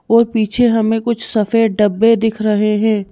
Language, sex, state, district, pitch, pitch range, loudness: Hindi, female, Madhya Pradesh, Bhopal, 220 Hz, 215-230 Hz, -14 LUFS